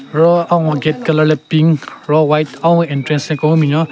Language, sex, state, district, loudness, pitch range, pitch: Rengma, male, Nagaland, Kohima, -14 LUFS, 150-160 Hz, 155 Hz